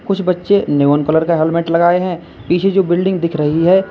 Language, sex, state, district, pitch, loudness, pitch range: Hindi, male, Uttar Pradesh, Lalitpur, 175 Hz, -14 LUFS, 160-190 Hz